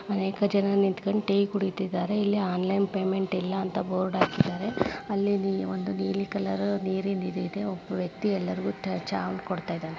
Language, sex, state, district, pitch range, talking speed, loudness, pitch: Kannada, female, Karnataka, Dharwad, 180-200 Hz, 150 wpm, -28 LUFS, 190 Hz